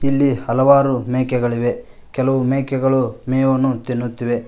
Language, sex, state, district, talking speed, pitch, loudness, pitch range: Kannada, male, Karnataka, Koppal, 95 wpm, 130 Hz, -18 LUFS, 120-135 Hz